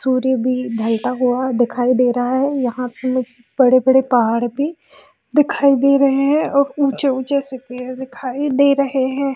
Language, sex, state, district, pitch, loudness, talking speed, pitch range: Hindi, female, Bihar, Jamui, 260 Hz, -17 LUFS, 165 wpm, 250-275 Hz